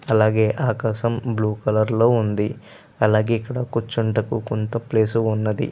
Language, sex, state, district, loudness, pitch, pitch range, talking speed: Telugu, male, Andhra Pradesh, Chittoor, -21 LUFS, 110 Hz, 110-115 Hz, 125 wpm